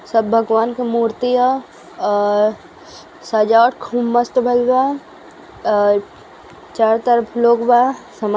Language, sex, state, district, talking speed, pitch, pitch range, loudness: Hindi, female, Uttar Pradesh, Gorakhpur, 130 wpm, 235 Hz, 220-245 Hz, -16 LUFS